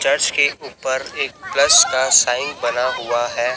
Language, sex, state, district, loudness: Hindi, male, Chhattisgarh, Raipur, -16 LUFS